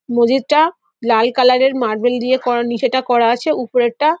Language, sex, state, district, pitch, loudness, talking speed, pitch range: Bengali, female, West Bengal, Dakshin Dinajpur, 245 Hz, -15 LUFS, 185 wpm, 240-265 Hz